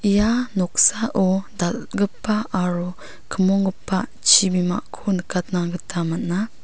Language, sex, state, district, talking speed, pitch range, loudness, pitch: Garo, female, Meghalaya, South Garo Hills, 80 wpm, 180-205 Hz, -20 LUFS, 190 Hz